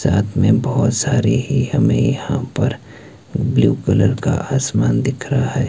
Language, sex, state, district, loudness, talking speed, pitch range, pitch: Hindi, male, Himachal Pradesh, Shimla, -17 LUFS, 160 wpm, 115-135 Hz, 130 Hz